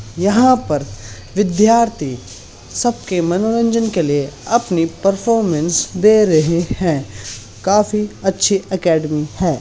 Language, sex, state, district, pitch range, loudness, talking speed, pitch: Hindi, male, Bihar, Saharsa, 145-210 Hz, -16 LUFS, 110 wpm, 175 Hz